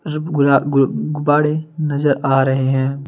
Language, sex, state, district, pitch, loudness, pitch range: Hindi, male, Bihar, Kaimur, 145 Hz, -17 LUFS, 135-150 Hz